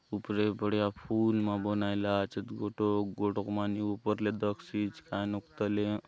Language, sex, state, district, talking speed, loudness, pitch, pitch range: Halbi, male, Chhattisgarh, Bastar, 170 wpm, -33 LUFS, 105 Hz, 100-105 Hz